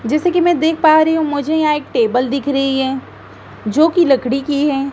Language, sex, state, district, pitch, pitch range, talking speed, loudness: Hindi, female, Madhya Pradesh, Dhar, 290 Hz, 270-315 Hz, 220 wpm, -15 LUFS